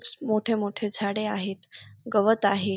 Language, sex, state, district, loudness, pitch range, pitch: Marathi, female, Maharashtra, Dhule, -26 LUFS, 195-215 Hz, 205 Hz